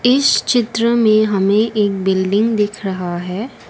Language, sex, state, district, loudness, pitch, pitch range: Hindi, female, Assam, Kamrup Metropolitan, -16 LUFS, 210 Hz, 195-230 Hz